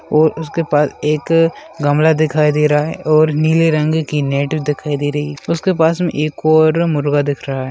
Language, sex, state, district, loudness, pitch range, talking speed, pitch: Hindi, male, Bihar, Madhepura, -15 LUFS, 150-160 Hz, 200 wpm, 155 Hz